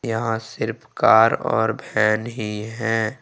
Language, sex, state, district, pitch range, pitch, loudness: Hindi, male, Jharkhand, Ranchi, 110-115 Hz, 110 Hz, -21 LUFS